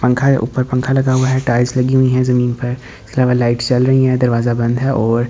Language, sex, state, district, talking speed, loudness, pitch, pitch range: Hindi, male, Delhi, New Delhi, 250 wpm, -15 LUFS, 125 Hz, 120-130 Hz